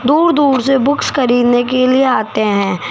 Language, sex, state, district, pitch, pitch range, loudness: Hindi, female, Rajasthan, Jaipur, 255 Hz, 245-270 Hz, -13 LUFS